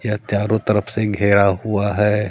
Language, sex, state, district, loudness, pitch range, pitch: Hindi, male, Bihar, Katihar, -18 LUFS, 100-105 Hz, 105 Hz